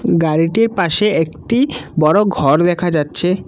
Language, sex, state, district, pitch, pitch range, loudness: Bengali, male, Assam, Kamrup Metropolitan, 175 Hz, 160-205 Hz, -15 LUFS